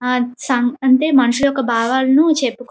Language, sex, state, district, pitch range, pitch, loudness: Telugu, female, Andhra Pradesh, Srikakulam, 245-270 Hz, 260 Hz, -15 LUFS